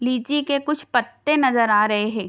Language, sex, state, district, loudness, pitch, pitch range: Hindi, female, Bihar, Darbhanga, -20 LUFS, 245 Hz, 220-290 Hz